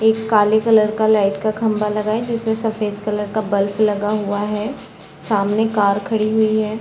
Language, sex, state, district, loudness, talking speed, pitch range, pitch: Hindi, female, Chhattisgarh, Balrampur, -18 LUFS, 205 wpm, 210-220 Hz, 215 Hz